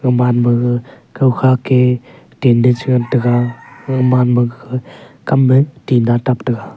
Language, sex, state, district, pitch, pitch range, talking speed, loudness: Wancho, male, Arunachal Pradesh, Longding, 125 Hz, 120-130 Hz, 105 wpm, -14 LUFS